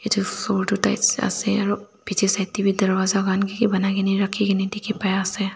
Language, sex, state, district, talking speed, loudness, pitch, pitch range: Nagamese, female, Nagaland, Dimapur, 225 wpm, -22 LUFS, 200 Hz, 195-210 Hz